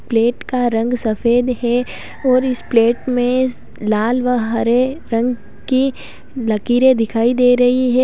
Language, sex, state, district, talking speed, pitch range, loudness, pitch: Hindi, female, Uttar Pradesh, Lalitpur, 140 wpm, 230-255 Hz, -16 LUFS, 245 Hz